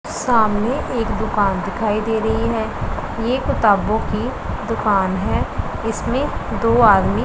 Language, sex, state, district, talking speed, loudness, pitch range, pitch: Hindi, female, Punjab, Pathankot, 125 wpm, -19 LUFS, 205-230 Hz, 220 Hz